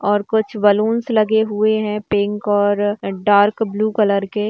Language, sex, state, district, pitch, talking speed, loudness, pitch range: Hindi, female, Bihar, Bhagalpur, 210 Hz, 160 wpm, -17 LUFS, 205-215 Hz